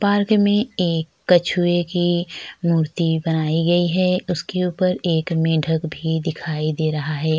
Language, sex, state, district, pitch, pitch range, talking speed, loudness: Hindi, female, Chhattisgarh, Sukma, 170 Hz, 160-180 Hz, 155 wpm, -20 LUFS